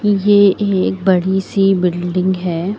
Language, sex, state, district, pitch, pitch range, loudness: Hindi, female, Uttar Pradesh, Lucknow, 190 Hz, 180-200 Hz, -15 LUFS